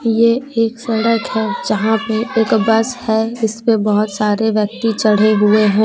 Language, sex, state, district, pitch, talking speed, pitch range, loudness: Hindi, female, Jharkhand, Deoghar, 220 Hz, 175 wpm, 215-230 Hz, -15 LUFS